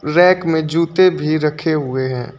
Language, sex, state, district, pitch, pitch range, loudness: Hindi, male, Uttar Pradesh, Lucknow, 155 Hz, 150-170 Hz, -16 LUFS